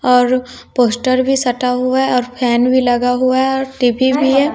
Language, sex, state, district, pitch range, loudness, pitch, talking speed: Hindi, female, Bihar, West Champaran, 245-260 Hz, -14 LUFS, 255 Hz, 210 wpm